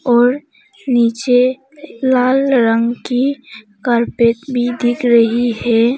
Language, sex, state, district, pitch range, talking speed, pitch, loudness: Hindi, female, Arunachal Pradesh, Papum Pare, 235-260 Hz, 100 wpm, 245 Hz, -15 LUFS